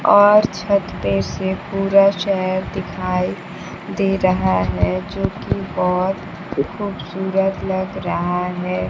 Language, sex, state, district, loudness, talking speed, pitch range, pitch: Hindi, female, Bihar, Kaimur, -19 LUFS, 120 wpm, 180-195 Hz, 190 Hz